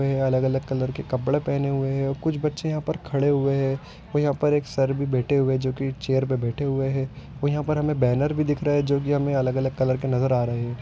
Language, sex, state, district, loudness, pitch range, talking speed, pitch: Hindi, male, Andhra Pradesh, Anantapur, -24 LUFS, 130-145 Hz, 285 wpm, 135 Hz